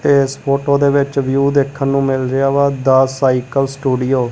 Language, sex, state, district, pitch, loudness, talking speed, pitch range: Punjabi, male, Punjab, Kapurthala, 135 Hz, -15 LUFS, 195 wpm, 135-140 Hz